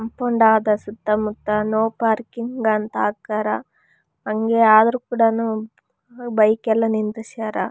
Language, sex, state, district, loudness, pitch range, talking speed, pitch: Kannada, female, Karnataka, Raichur, -20 LUFS, 215-230 Hz, 110 wpm, 220 Hz